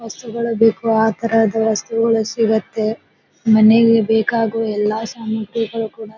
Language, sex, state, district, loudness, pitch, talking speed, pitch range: Kannada, female, Karnataka, Bijapur, -17 LUFS, 225 Hz, 95 wpm, 220-225 Hz